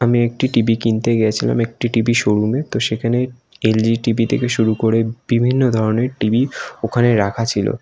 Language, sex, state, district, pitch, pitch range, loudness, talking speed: Bengali, male, West Bengal, North 24 Parganas, 115 Hz, 110-120 Hz, -17 LUFS, 170 wpm